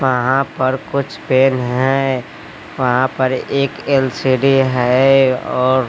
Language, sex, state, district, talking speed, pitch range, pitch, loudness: Hindi, male, Bihar, Katihar, 110 wpm, 130-135 Hz, 130 Hz, -15 LUFS